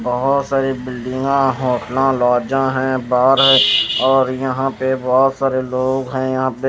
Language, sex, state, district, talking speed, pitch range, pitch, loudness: Hindi, male, Himachal Pradesh, Shimla, 170 wpm, 130-135 Hz, 130 Hz, -16 LUFS